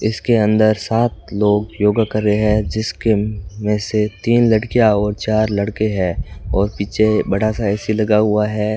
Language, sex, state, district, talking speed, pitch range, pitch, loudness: Hindi, male, Rajasthan, Bikaner, 170 wpm, 105-110 Hz, 105 Hz, -17 LUFS